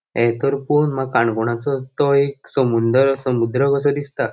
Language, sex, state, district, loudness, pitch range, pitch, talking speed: Konkani, male, Goa, North and South Goa, -18 LUFS, 120-140 Hz, 135 Hz, 150 wpm